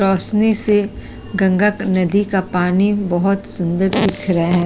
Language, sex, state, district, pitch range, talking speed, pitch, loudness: Hindi, female, Chhattisgarh, Kabirdham, 185-205 Hz, 155 wpm, 195 Hz, -17 LUFS